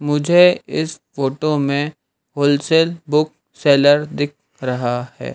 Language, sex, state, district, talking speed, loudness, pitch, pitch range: Hindi, male, Madhya Pradesh, Dhar, 110 wpm, -17 LUFS, 145 Hz, 140-155 Hz